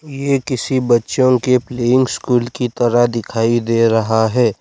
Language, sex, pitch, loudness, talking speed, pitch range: Hindi, male, 120 Hz, -16 LUFS, 155 wpm, 115-130 Hz